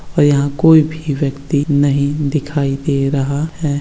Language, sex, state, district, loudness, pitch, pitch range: Hindi, male, Bihar, Begusarai, -15 LUFS, 145 Hz, 140-150 Hz